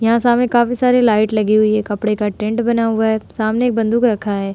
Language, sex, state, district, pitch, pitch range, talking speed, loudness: Hindi, female, Uttar Pradesh, Budaun, 220 Hz, 215-235 Hz, 235 wpm, -16 LUFS